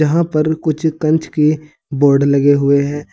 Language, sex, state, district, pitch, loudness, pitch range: Hindi, male, Uttar Pradesh, Saharanpur, 150 Hz, -14 LUFS, 140-160 Hz